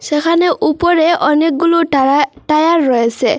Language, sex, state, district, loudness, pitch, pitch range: Bengali, female, Assam, Hailakandi, -13 LUFS, 315 Hz, 295-335 Hz